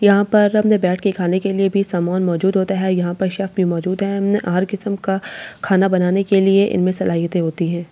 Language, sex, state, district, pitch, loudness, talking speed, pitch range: Hindi, female, Delhi, New Delhi, 190 Hz, -17 LUFS, 245 wpm, 180-200 Hz